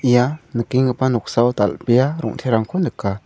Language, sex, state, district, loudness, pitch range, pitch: Garo, male, Meghalaya, South Garo Hills, -19 LUFS, 115-130 Hz, 125 Hz